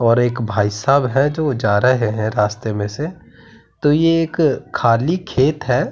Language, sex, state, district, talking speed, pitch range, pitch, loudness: Hindi, male, Uttarakhand, Tehri Garhwal, 170 wpm, 110-150 Hz, 130 Hz, -17 LUFS